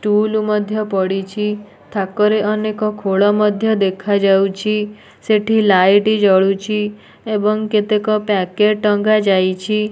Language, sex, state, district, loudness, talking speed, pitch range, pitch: Odia, female, Odisha, Nuapada, -16 LUFS, 110 wpm, 195-215 Hz, 210 Hz